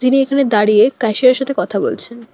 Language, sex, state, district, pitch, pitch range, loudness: Bengali, female, West Bengal, Alipurduar, 255 Hz, 225-270 Hz, -14 LUFS